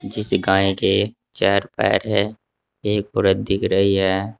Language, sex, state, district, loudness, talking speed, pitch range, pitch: Hindi, male, Uttar Pradesh, Saharanpur, -20 LUFS, 150 wpm, 95-105 Hz, 100 Hz